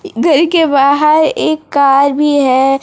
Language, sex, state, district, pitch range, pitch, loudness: Hindi, female, Odisha, Sambalpur, 275-315 Hz, 290 Hz, -11 LUFS